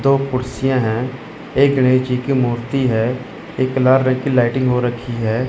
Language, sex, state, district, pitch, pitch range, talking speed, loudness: Hindi, male, Chandigarh, Chandigarh, 130 Hz, 120-130 Hz, 185 wpm, -17 LUFS